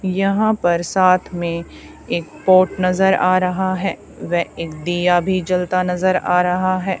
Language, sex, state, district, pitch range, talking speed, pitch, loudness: Hindi, female, Haryana, Charkhi Dadri, 175-185 Hz, 170 wpm, 185 Hz, -18 LUFS